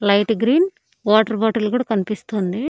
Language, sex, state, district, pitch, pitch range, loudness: Telugu, female, Andhra Pradesh, Annamaya, 220 Hz, 210-245 Hz, -19 LUFS